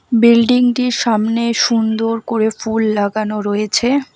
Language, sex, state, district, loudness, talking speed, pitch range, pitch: Bengali, female, West Bengal, Alipurduar, -15 LUFS, 100 wpm, 220-240 Hz, 230 Hz